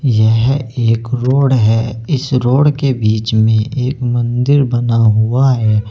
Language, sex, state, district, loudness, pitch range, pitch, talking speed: Hindi, male, Uttar Pradesh, Saharanpur, -13 LUFS, 110-130 Hz, 120 Hz, 140 wpm